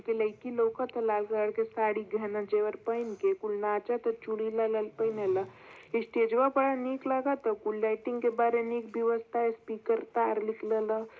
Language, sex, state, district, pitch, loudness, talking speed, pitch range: Bhojpuri, female, Uttar Pradesh, Varanasi, 225 Hz, -31 LUFS, 160 wpm, 215-235 Hz